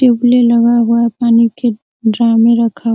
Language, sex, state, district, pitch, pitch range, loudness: Hindi, female, Bihar, Araria, 235 Hz, 230-240 Hz, -12 LUFS